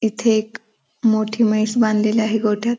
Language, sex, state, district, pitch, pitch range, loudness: Marathi, female, Maharashtra, Pune, 220 Hz, 215-230 Hz, -18 LUFS